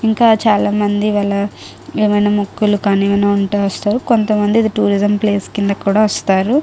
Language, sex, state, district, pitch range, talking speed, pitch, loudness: Telugu, female, Andhra Pradesh, Guntur, 200-215 Hz, 155 wpm, 205 Hz, -15 LUFS